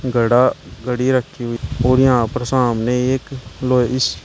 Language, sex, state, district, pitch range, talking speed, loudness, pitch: Hindi, male, Uttar Pradesh, Shamli, 120-130 Hz, 155 wpm, -17 LUFS, 125 Hz